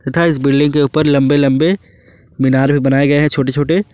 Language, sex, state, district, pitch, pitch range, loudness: Hindi, male, Jharkhand, Ranchi, 140 Hz, 135-150 Hz, -13 LUFS